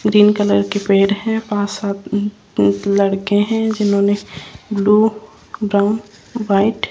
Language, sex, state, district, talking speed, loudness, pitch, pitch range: Hindi, female, Rajasthan, Jaipur, 120 wpm, -16 LUFS, 205 Hz, 200-215 Hz